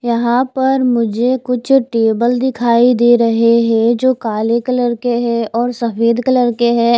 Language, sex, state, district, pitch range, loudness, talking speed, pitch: Hindi, female, Chandigarh, Chandigarh, 235-250 Hz, -14 LUFS, 155 wpm, 235 Hz